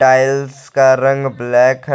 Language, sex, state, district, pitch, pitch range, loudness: Hindi, male, Jharkhand, Garhwa, 135 Hz, 130-135 Hz, -14 LUFS